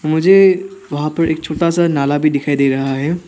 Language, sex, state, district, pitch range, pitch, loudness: Hindi, male, Arunachal Pradesh, Papum Pare, 145-175 Hz, 155 Hz, -14 LUFS